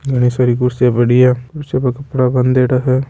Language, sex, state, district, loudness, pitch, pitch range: Marwari, male, Rajasthan, Nagaur, -14 LUFS, 125 Hz, 125-130 Hz